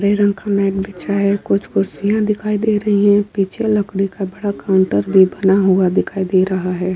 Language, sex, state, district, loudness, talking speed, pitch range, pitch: Hindi, female, Uttar Pradesh, Jalaun, -16 LUFS, 205 wpm, 190-205 Hz, 195 Hz